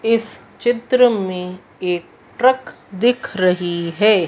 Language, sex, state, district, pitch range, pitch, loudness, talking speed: Hindi, female, Madhya Pradesh, Dhar, 180-240 Hz, 210 Hz, -18 LUFS, 110 wpm